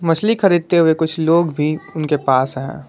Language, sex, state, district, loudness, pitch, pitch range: Hindi, male, Jharkhand, Garhwa, -16 LUFS, 160 Hz, 150-170 Hz